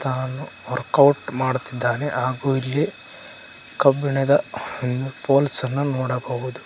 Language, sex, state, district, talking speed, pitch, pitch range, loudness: Kannada, male, Karnataka, Koppal, 80 wpm, 130 Hz, 130-140 Hz, -21 LUFS